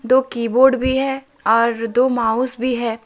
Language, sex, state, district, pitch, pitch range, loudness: Hindi, male, Jharkhand, Deoghar, 250 Hz, 230-260 Hz, -17 LUFS